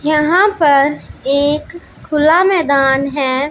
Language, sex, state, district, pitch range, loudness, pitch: Hindi, female, Punjab, Pathankot, 275-330 Hz, -13 LUFS, 295 Hz